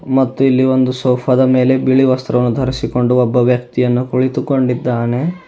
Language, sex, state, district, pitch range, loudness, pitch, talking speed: Kannada, male, Karnataka, Bidar, 125-130 Hz, -14 LUFS, 130 Hz, 120 wpm